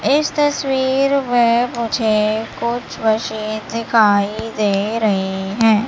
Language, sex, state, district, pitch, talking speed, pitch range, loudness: Hindi, male, Madhya Pradesh, Katni, 225 Hz, 100 wpm, 215-245 Hz, -17 LUFS